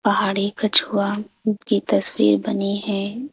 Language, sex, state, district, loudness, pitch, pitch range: Hindi, female, Madhya Pradesh, Bhopal, -20 LUFS, 205 Hz, 200-215 Hz